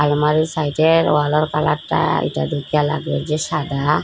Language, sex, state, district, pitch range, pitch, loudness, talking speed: Bengali, female, Assam, Hailakandi, 145-155 Hz, 150 Hz, -18 LUFS, 135 wpm